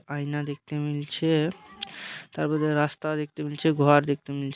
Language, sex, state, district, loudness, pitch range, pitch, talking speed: Bengali, male, West Bengal, Malda, -27 LUFS, 145-160 Hz, 150 Hz, 130 wpm